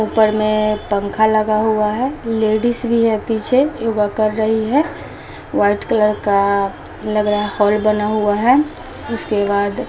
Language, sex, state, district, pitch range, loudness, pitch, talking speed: Hindi, female, Bihar, Patna, 210-225 Hz, -17 LUFS, 215 Hz, 150 wpm